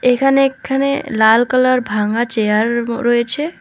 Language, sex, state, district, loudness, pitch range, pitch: Bengali, female, West Bengal, Alipurduar, -15 LUFS, 225-270 Hz, 240 Hz